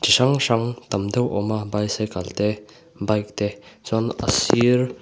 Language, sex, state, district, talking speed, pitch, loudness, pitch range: Mizo, male, Mizoram, Aizawl, 180 wpm, 105 Hz, -22 LUFS, 105-120 Hz